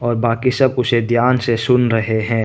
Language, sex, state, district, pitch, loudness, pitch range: Hindi, male, Arunachal Pradesh, Papum Pare, 120 Hz, -16 LUFS, 115-125 Hz